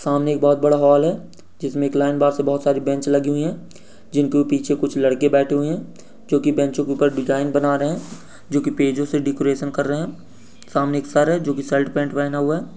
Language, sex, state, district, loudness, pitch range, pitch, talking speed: Hindi, male, Uttar Pradesh, Budaun, -20 LUFS, 140-145 Hz, 145 Hz, 250 wpm